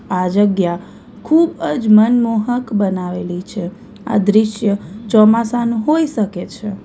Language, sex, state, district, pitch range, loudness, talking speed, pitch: Gujarati, female, Gujarat, Valsad, 200-230 Hz, -16 LUFS, 105 wpm, 215 Hz